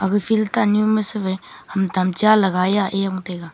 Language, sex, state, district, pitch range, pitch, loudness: Wancho, female, Arunachal Pradesh, Longding, 190-215 Hz, 195 Hz, -19 LUFS